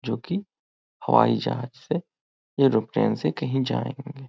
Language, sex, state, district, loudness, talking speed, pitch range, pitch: Hindi, male, Bihar, Muzaffarpur, -25 LUFS, 125 wpm, 130-155 Hz, 135 Hz